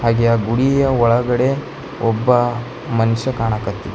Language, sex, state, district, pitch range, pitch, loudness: Kannada, male, Karnataka, Bidar, 115-125 Hz, 120 Hz, -17 LUFS